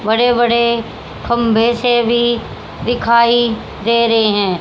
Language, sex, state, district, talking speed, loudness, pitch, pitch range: Hindi, female, Haryana, Jhajjar, 115 wpm, -14 LUFS, 235 Hz, 225-235 Hz